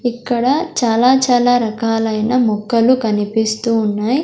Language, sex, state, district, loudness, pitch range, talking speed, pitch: Telugu, female, Andhra Pradesh, Sri Satya Sai, -15 LUFS, 220-250 Hz, 100 wpm, 230 Hz